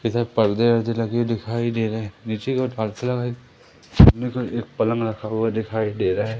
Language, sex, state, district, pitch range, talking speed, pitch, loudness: Hindi, male, Madhya Pradesh, Umaria, 110-120 Hz, 180 wpm, 115 Hz, -21 LUFS